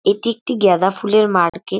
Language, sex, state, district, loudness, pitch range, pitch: Bengali, female, West Bengal, North 24 Parganas, -16 LUFS, 185-215 Hz, 195 Hz